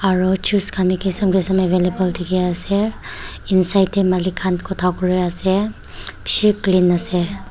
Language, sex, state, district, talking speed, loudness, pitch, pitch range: Nagamese, female, Nagaland, Dimapur, 150 wpm, -16 LUFS, 185 Hz, 180-195 Hz